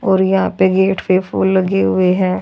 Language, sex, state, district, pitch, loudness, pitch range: Hindi, female, Haryana, Charkhi Dadri, 190 Hz, -15 LUFS, 185-190 Hz